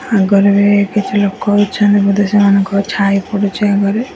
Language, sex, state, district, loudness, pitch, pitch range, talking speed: Odia, female, Odisha, Nuapada, -12 LUFS, 200 Hz, 200-205 Hz, 160 wpm